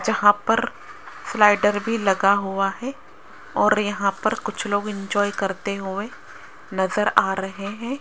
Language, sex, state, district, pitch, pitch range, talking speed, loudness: Hindi, female, Rajasthan, Jaipur, 205 Hz, 195-210 Hz, 140 wpm, -22 LUFS